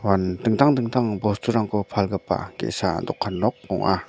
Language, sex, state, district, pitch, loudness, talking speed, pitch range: Garo, male, Meghalaya, North Garo Hills, 105 Hz, -23 LUFS, 115 wpm, 100-120 Hz